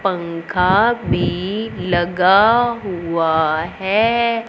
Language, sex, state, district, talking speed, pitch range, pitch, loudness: Hindi, female, Punjab, Fazilka, 65 wpm, 175-225 Hz, 190 Hz, -17 LUFS